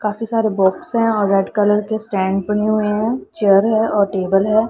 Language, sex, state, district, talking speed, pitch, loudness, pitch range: Hindi, female, Punjab, Pathankot, 215 wpm, 210 Hz, -17 LUFS, 195-220 Hz